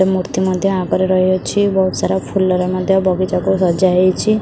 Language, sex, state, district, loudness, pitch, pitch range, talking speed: Odia, female, Odisha, Khordha, -15 LUFS, 185 Hz, 185-190 Hz, 150 wpm